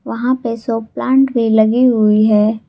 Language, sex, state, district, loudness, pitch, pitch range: Hindi, female, Jharkhand, Garhwa, -14 LUFS, 230 Hz, 220-250 Hz